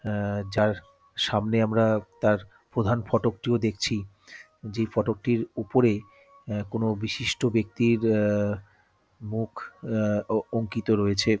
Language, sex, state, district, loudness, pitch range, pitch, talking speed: Bengali, male, West Bengal, North 24 Parganas, -26 LUFS, 105-115 Hz, 110 Hz, 105 wpm